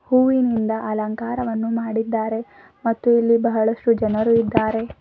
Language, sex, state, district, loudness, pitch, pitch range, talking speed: Kannada, female, Karnataka, Bidar, -20 LUFS, 230 Hz, 220-235 Hz, 95 wpm